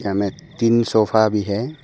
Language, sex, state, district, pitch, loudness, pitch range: Hindi, male, Arunachal Pradesh, Papum Pare, 110 Hz, -19 LUFS, 100-120 Hz